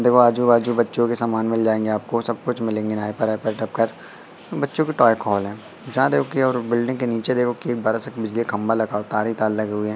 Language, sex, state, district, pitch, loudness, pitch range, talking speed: Hindi, male, Madhya Pradesh, Katni, 115 Hz, -21 LUFS, 110-120 Hz, 240 wpm